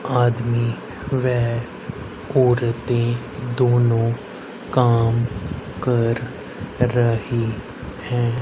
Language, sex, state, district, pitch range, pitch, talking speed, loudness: Hindi, male, Haryana, Rohtak, 115-125 Hz, 120 Hz, 55 wpm, -21 LUFS